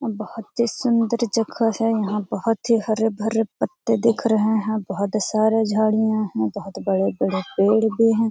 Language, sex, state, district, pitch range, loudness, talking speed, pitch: Hindi, female, Bihar, Jamui, 215-225 Hz, -21 LUFS, 160 wpm, 220 Hz